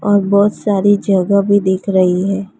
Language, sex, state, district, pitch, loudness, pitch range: Hindi, female, Gujarat, Gandhinagar, 200 Hz, -14 LUFS, 190-205 Hz